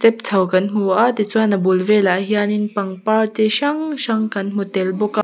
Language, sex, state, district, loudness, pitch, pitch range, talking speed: Mizo, female, Mizoram, Aizawl, -18 LUFS, 210 Hz, 195-220 Hz, 215 wpm